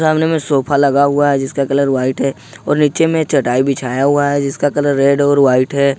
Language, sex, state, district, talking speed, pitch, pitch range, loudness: Hindi, male, Jharkhand, Ranchi, 230 wpm, 140 Hz, 135-145 Hz, -14 LUFS